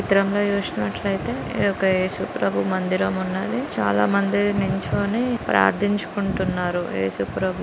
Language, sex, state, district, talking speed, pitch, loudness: Telugu, female, Andhra Pradesh, Srikakulam, 85 wpm, 190 Hz, -22 LUFS